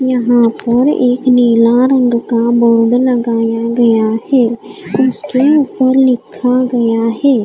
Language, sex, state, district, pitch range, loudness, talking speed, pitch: Hindi, female, Odisha, Khordha, 230-255 Hz, -12 LUFS, 120 wpm, 240 Hz